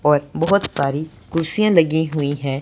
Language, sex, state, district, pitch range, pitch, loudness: Hindi, male, Punjab, Pathankot, 140-165 Hz, 150 Hz, -19 LUFS